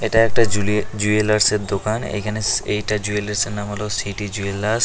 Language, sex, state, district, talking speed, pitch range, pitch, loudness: Bengali, male, West Bengal, Cooch Behar, 185 wpm, 105-110 Hz, 105 Hz, -20 LUFS